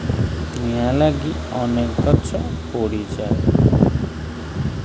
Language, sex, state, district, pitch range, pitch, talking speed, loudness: Odia, male, Odisha, Khordha, 80-120 Hz, 80 Hz, 60 wpm, -20 LUFS